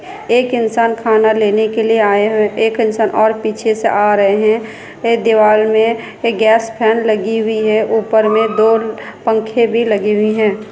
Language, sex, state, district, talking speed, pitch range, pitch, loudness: Hindi, female, Bihar, Kishanganj, 190 wpm, 215-225 Hz, 220 Hz, -13 LUFS